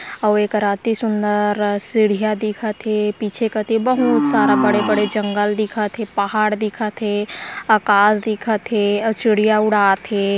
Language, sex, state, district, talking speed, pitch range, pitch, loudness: Hindi, female, Bihar, Araria, 145 wpm, 205-220 Hz, 215 Hz, -18 LUFS